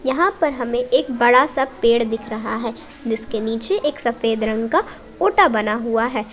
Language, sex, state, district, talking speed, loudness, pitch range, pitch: Hindi, female, Jharkhand, Palamu, 190 wpm, -19 LUFS, 225-280 Hz, 235 Hz